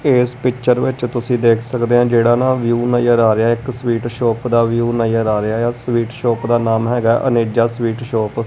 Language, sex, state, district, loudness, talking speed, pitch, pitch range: Punjabi, male, Punjab, Kapurthala, -16 LUFS, 215 wpm, 120 Hz, 115-120 Hz